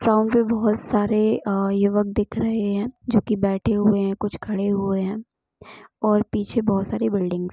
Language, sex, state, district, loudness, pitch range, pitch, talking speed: Hindi, female, Bihar, Gopalganj, -22 LUFS, 200-220 Hz, 210 Hz, 185 wpm